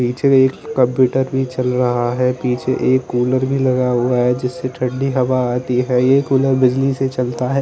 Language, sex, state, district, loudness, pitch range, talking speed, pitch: Hindi, male, Chandigarh, Chandigarh, -17 LUFS, 125-130 Hz, 195 wpm, 125 Hz